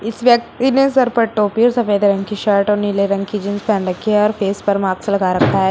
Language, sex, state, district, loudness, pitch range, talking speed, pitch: Hindi, female, Uttar Pradesh, Shamli, -16 LUFS, 200-225 Hz, 275 wpm, 205 Hz